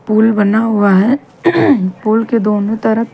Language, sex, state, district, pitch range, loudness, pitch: Hindi, female, Haryana, Charkhi Dadri, 210-230 Hz, -13 LUFS, 220 Hz